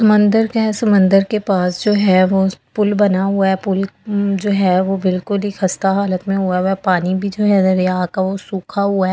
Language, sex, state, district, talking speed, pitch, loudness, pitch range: Hindi, female, Delhi, New Delhi, 215 wpm, 195 Hz, -16 LUFS, 190-205 Hz